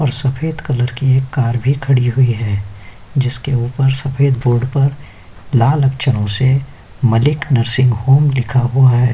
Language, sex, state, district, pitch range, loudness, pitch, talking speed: Hindi, male, Uttar Pradesh, Jyotiba Phule Nagar, 120-135 Hz, -15 LUFS, 130 Hz, 155 wpm